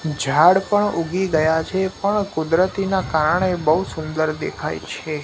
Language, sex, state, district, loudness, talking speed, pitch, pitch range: Gujarati, male, Gujarat, Gandhinagar, -20 LUFS, 135 wpm, 165 Hz, 155-190 Hz